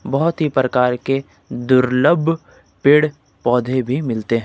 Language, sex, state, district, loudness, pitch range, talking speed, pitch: Hindi, male, Uttar Pradesh, Lucknow, -17 LUFS, 125-145 Hz, 135 wpm, 130 Hz